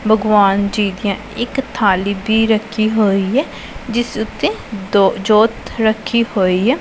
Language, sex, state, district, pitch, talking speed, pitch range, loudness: Punjabi, female, Punjab, Pathankot, 215 Hz, 140 wpm, 200-225 Hz, -16 LUFS